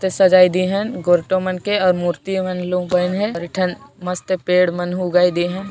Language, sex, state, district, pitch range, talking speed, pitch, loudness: Sadri, female, Chhattisgarh, Jashpur, 180-190 Hz, 230 wpm, 180 Hz, -18 LUFS